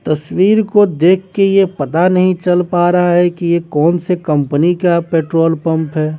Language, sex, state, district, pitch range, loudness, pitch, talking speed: Hindi, male, Bihar, West Champaran, 160-185 Hz, -13 LUFS, 175 Hz, 185 wpm